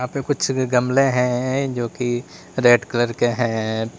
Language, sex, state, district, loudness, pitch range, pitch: Hindi, male, Uttar Pradesh, Lalitpur, -20 LUFS, 120-130 Hz, 125 Hz